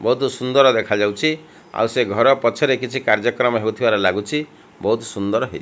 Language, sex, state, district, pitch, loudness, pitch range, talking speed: Odia, male, Odisha, Malkangiri, 120 Hz, -19 LUFS, 105-135 Hz, 160 wpm